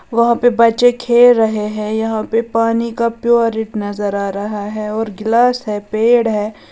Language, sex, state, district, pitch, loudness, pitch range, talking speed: Hindi, female, Uttar Pradesh, Lalitpur, 225 Hz, -15 LUFS, 210-235 Hz, 180 wpm